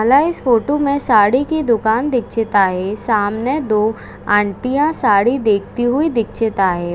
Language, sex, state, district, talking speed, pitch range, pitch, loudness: Hindi, female, Maharashtra, Pune, 145 wpm, 210-270 Hz, 230 Hz, -16 LUFS